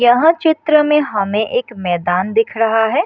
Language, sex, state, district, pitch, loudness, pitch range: Hindi, female, Bihar, Madhepura, 225 Hz, -15 LUFS, 205-300 Hz